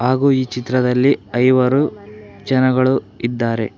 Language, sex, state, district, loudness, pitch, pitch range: Kannada, male, Karnataka, Bangalore, -17 LUFS, 125 Hz, 120-130 Hz